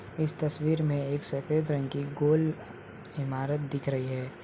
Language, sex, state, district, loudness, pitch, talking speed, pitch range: Hindi, male, Uttar Pradesh, Ghazipur, -30 LUFS, 145 Hz, 160 wpm, 135-150 Hz